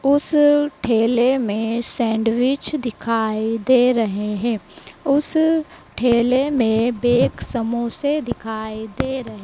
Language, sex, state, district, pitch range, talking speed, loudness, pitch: Hindi, female, Madhya Pradesh, Dhar, 225-270 Hz, 110 wpm, -19 LUFS, 240 Hz